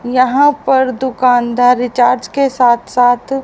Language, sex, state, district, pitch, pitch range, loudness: Hindi, female, Haryana, Rohtak, 250 Hz, 245-265 Hz, -12 LUFS